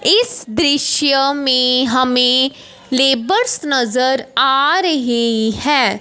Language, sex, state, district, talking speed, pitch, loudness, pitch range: Hindi, female, Punjab, Fazilka, 90 wpm, 265 Hz, -14 LUFS, 250-290 Hz